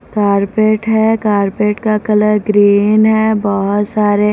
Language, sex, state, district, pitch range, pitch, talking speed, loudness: Hindi, female, Maharashtra, Mumbai Suburban, 205-215 Hz, 210 Hz, 125 wpm, -13 LUFS